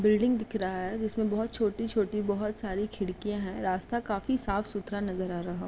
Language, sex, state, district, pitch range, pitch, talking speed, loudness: Hindi, female, Uttar Pradesh, Etah, 195-220 Hz, 210 Hz, 210 wpm, -31 LUFS